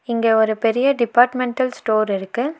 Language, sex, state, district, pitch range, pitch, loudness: Tamil, female, Tamil Nadu, Nilgiris, 220-255 Hz, 235 Hz, -18 LUFS